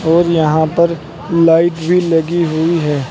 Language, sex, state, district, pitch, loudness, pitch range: Hindi, male, Uttar Pradesh, Saharanpur, 165 Hz, -13 LUFS, 160-170 Hz